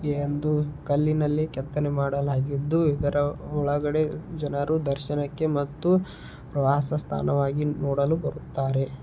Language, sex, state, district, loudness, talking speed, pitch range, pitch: Kannada, male, Karnataka, Belgaum, -26 LUFS, 95 wpm, 140-150 Hz, 145 Hz